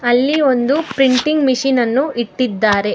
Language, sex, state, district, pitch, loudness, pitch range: Kannada, female, Karnataka, Bangalore, 260 Hz, -15 LUFS, 240-275 Hz